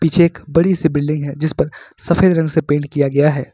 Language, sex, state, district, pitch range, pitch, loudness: Hindi, male, Jharkhand, Ranchi, 145-165 Hz, 155 Hz, -16 LUFS